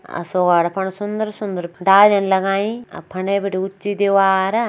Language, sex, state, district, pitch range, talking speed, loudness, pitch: Kumaoni, female, Uttarakhand, Tehri Garhwal, 190-205 Hz, 155 wpm, -18 LUFS, 195 Hz